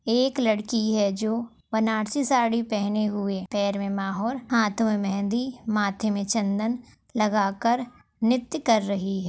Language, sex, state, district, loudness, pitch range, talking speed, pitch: Hindi, female, Maharashtra, Nagpur, -25 LUFS, 200-235 Hz, 135 wpm, 220 Hz